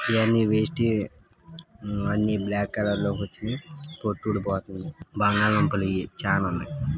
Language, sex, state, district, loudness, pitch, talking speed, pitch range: Telugu, male, Karnataka, Raichur, -26 LUFS, 105 Hz, 130 wpm, 100-115 Hz